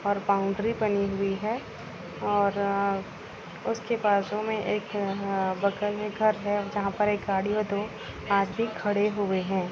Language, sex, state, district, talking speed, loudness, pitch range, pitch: Hindi, female, Chhattisgarh, Balrampur, 160 wpm, -28 LUFS, 200-210 Hz, 205 Hz